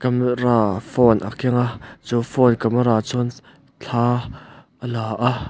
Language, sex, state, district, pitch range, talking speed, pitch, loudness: Mizo, male, Mizoram, Aizawl, 115-125 Hz, 140 wpm, 120 Hz, -20 LUFS